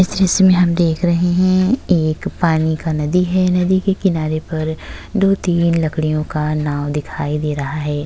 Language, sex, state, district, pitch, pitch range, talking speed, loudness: Hindi, female, Uttar Pradesh, Jyotiba Phule Nagar, 170 Hz, 155-185 Hz, 180 wpm, -17 LUFS